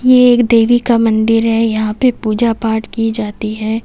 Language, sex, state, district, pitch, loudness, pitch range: Hindi, female, Haryana, Jhajjar, 225 Hz, -13 LUFS, 220-235 Hz